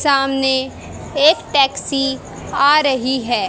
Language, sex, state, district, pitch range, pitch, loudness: Hindi, female, Haryana, Jhajjar, 265-290 Hz, 275 Hz, -16 LUFS